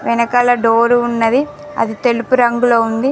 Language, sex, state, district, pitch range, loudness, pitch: Telugu, female, Telangana, Mahabubabad, 235-245 Hz, -14 LUFS, 240 Hz